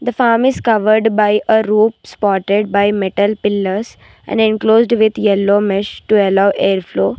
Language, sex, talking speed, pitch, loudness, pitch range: English, female, 165 wpm, 210 Hz, -14 LUFS, 200-220 Hz